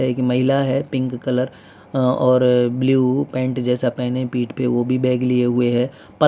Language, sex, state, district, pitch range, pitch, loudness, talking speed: Hindi, male, Gujarat, Valsad, 125-130 Hz, 125 Hz, -19 LUFS, 200 wpm